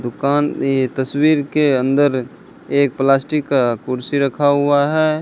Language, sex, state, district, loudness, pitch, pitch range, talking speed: Hindi, male, Rajasthan, Bikaner, -17 LUFS, 140 Hz, 130-145 Hz, 140 wpm